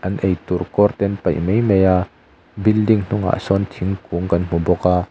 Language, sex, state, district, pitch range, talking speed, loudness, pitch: Mizo, male, Mizoram, Aizawl, 90-100 Hz, 190 wpm, -18 LUFS, 95 Hz